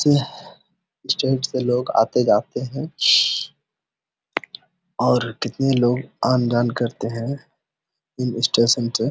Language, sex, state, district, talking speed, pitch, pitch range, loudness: Hindi, male, Jharkhand, Sahebganj, 90 wpm, 125 Hz, 120-135 Hz, -20 LUFS